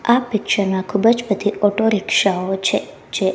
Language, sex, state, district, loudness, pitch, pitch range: Gujarati, female, Gujarat, Gandhinagar, -18 LUFS, 205 Hz, 195-220 Hz